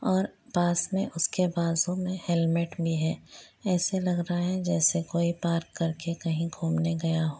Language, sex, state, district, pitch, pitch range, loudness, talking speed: Hindi, female, Jharkhand, Jamtara, 170 Hz, 165-180 Hz, -28 LUFS, 180 wpm